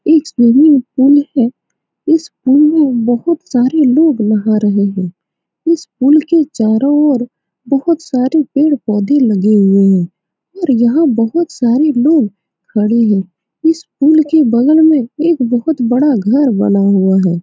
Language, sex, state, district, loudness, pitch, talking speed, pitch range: Hindi, female, Bihar, Saran, -12 LUFS, 255 Hz, 150 wpm, 215-305 Hz